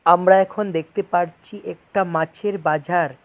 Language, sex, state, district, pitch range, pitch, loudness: Bengali, male, West Bengal, Cooch Behar, 160-200 Hz, 175 Hz, -20 LUFS